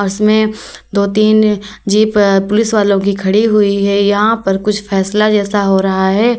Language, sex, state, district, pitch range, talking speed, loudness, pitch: Hindi, female, Uttar Pradesh, Lalitpur, 200-215 Hz, 170 wpm, -12 LUFS, 205 Hz